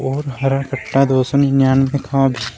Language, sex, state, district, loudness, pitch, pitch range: Hindi, male, Uttar Pradesh, Shamli, -16 LUFS, 135 Hz, 130-135 Hz